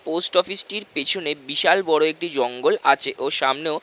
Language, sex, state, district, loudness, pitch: Bengali, male, West Bengal, North 24 Parganas, -21 LUFS, 170 Hz